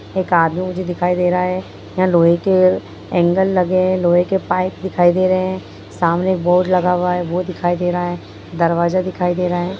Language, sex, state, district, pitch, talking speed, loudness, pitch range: Hindi, female, Bihar, Purnia, 180 Hz, 220 wpm, -17 LUFS, 175-185 Hz